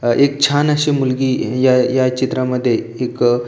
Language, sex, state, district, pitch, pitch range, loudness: Marathi, male, Maharashtra, Aurangabad, 130 Hz, 125-140 Hz, -16 LUFS